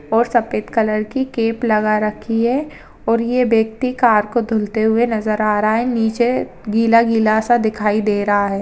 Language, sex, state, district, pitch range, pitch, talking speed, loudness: Hindi, female, Uttar Pradesh, Jyotiba Phule Nagar, 215-235 Hz, 225 Hz, 180 wpm, -17 LUFS